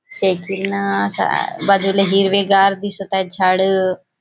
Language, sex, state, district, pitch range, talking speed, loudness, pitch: Marathi, female, Maharashtra, Chandrapur, 185-195 Hz, 115 wpm, -16 LUFS, 195 Hz